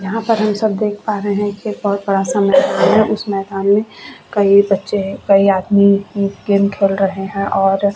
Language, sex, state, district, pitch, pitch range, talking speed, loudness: Hindi, female, Chhattisgarh, Bastar, 200 Hz, 195-210 Hz, 180 wpm, -15 LUFS